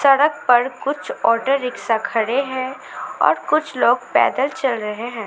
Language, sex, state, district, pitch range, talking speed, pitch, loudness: Hindi, female, West Bengal, Alipurduar, 230-275 Hz, 160 wpm, 260 Hz, -19 LUFS